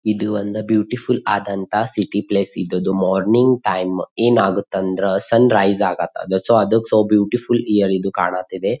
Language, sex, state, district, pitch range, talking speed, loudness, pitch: Kannada, male, Karnataka, Bijapur, 95-110 Hz, 145 wpm, -18 LUFS, 105 Hz